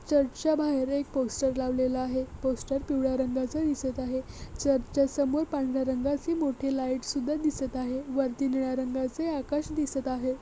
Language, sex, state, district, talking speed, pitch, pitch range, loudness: Marathi, female, Maharashtra, Nagpur, 150 wpm, 270 Hz, 260-285 Hz, -29 LUFS